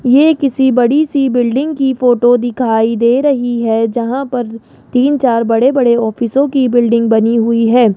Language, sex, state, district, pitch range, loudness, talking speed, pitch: Hindi, male, Rajasthan, Jaipur, 230-265 Hz, -12 LUFS, 175 wpm, 245 Hz